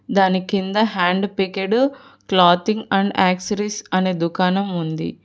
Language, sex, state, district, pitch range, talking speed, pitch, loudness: Telugu, female, Telangana, Hyderabad, 185-210 Hz, 115 wpm, 195 Hz, -19 LUFS